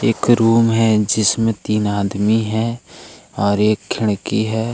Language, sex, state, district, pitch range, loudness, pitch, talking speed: Hindi, male, Jharkhand, Ranchi, 105-115 Hz, -17 LUFS, 110 Hz, 140 wpm